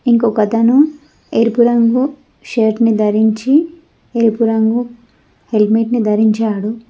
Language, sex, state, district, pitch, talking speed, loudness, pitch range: Telugu, female, Telangana, Mahabubabad, 230 Hz, 95 wpm, -14 LUFS, 220-240 Hz